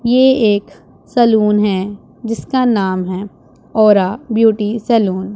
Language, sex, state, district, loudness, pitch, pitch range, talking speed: Hindi, male, Punjab, Pathankot, -14 LUFS, 210 Hz, 195-230 Hz, 135 wpm